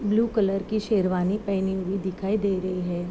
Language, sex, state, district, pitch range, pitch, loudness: Hindi, female, Uttar Pradesh, Deoria, 185-210 Hz, 195 Hz, -25 LUFS